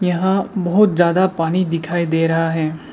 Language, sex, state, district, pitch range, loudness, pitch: Hindi, male, Assam, Sonitpur, 165-185 Hz, -17 LUFS, 175 Hz